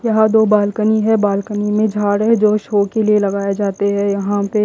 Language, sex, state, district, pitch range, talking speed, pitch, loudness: Hindi, female, Haryana, Jhajjar, 200-215 Hz, 220 wpm, 210 Hz, -15 LUFS